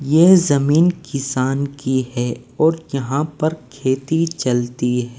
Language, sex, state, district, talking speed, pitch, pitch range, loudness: Hindi, male, Maharashtra, Mumbai Suburban, 125 wpm, 140 Hz, 130-160 Hz, -18 LUFS